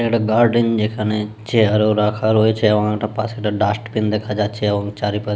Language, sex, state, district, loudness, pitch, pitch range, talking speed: Bengali, male, West Bengal, Jalpaiguri, -18 LUFS, 105 Hz, 105-110 Hz, 190 wpm